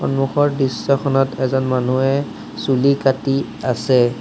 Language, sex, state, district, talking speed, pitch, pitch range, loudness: Assamese, male, Assam, Sonitpur, 100 wpm, 135 Hz, 130-135 Hz, -18 LUFS